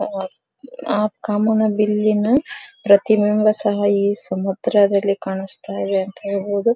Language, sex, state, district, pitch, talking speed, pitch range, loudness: Kannada, female, Karnataka, Dharwad, 210 Hz, 100 wpm, 200-215 Hz, -19 LUFS